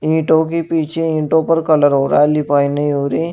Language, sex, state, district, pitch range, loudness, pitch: Hindi, male, Uttar Pradesh, Shamli, 145-160 Hz, -15 LUFS, 155 Hz